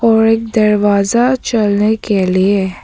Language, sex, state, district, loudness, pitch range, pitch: Hindi, female, Arunachal Pradesh, Papum Pare, -13 LUFS, 200-225 Hz, 210 Hz